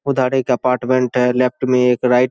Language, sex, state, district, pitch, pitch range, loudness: Hindi, male, Bihar, Saharsa, 125 Hz, 125-130 Hz, -16 LUFS